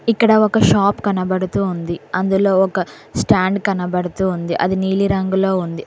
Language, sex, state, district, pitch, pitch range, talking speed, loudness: Telugu, female, Telangana, Mahabubabad, 190 Hz, 180-200 Hz, 135 wpm, -17 LUFS